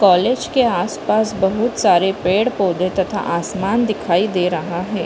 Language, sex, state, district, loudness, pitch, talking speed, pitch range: Hindi, female, Chhattisgarh, Bilaspur, -17 LUFS, 195 Hz, 155 wpm, 180-220 Hz